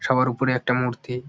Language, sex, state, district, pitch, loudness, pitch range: Bengali, male, West Bengal, Jalpaiguri, 125 Hz, -23 LUFS, 125-130 Hz